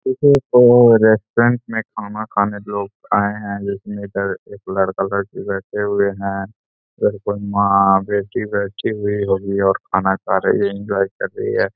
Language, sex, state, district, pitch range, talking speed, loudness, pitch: Hindi, male, Bihar, Gaya, 100-110 Hz, 165 wpm, -18 LUFS, 100 Hz